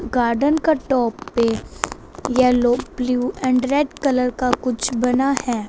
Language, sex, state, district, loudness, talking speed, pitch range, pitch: Hindi, female, Punjab, Fazilka, -20 LUFS, 135 wpm, 245-270 Hz, 250 Hz